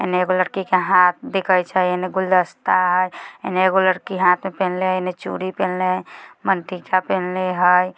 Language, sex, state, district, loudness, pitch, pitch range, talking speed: Bajjika, female, Bihar, Vaishali, -19 LUFS, 185 Hz, 180-185 Hz, 160 wpm